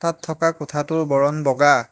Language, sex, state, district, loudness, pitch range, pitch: Assamese, male, Assam, Hailakandi, -20 LUFS, 145-160 Hz, 150 Hz